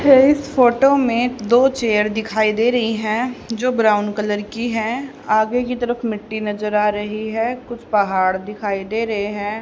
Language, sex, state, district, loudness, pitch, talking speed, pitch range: Hindi, female, Haryana, Charkhi Dadri, -18 LUFS, 225 Hz, 180 wpm, 210-245 Hz